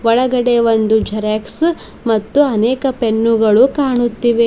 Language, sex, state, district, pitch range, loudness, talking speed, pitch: Kannada, female, Karnataka, Bidar, 220-255 Hz, -14 LUFS, 95 wpm, 235 Hz